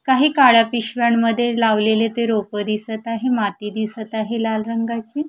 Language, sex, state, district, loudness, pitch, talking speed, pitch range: Marathi, female, Maharashtra, Mumbai Suburban, -19 LUFS, 230 Hz, 145 wpm, 220-235 Hz